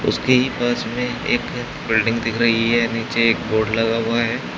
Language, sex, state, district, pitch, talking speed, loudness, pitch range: Hindi, male, Uttar Pradesh, Shamli, 115 Hz, 185 wpm, -19 LUFS, 115-120 Hz